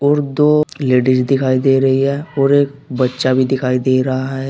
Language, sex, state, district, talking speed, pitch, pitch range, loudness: Hindi, male, Uttar Pradesh, Saharanpur, 200 wpm, 135 Hz, 130-140 Hz, -15 LUFS